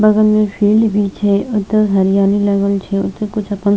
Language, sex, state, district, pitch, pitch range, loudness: Maithili, female, Bihar, Purnia, 205 Hz, 200-215 Hz, -14 LUFS